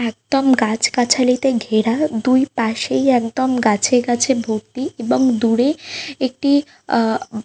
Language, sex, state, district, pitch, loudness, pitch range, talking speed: Bengali, female, West Bengal, Paschim Medinipur, 250 Hz, -17 LUFS, 230-265 Hz, 115 wpm